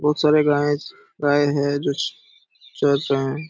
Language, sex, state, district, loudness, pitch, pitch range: Hindi, male, Jharkhand, Sahebganj, -21 LUFS, 145 Hz, 140-150 Hz